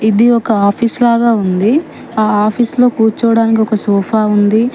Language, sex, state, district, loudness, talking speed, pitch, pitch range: Telugu, female, Telangana, Mahabubabad, -12 LUFS, 150 wpm, 220 Hz, 210-235 Hz